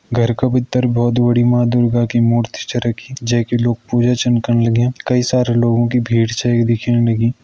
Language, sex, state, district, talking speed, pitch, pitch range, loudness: Hindi, male, Uttarakhand, Uttarkashi, 220 wpm, 120 Hz, 115-120 Hz, -16 LUFS